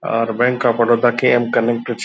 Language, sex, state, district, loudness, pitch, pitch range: Hindi, male, Bihar, Purnia, -16 LUFS, 120 Hz, 115-120 Hz